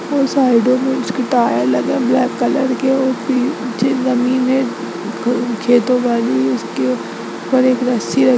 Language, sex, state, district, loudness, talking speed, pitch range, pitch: Hindi, female, Bihar, Gaya, -16 LUFS, 155 wpm, 235-260 Hz, 255 Hz